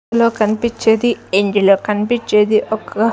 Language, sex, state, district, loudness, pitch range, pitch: Telugu, female, Andhra Pradesh, Sri Satya Sai, -15 LUFS, 210-230 Hz, 220 Hz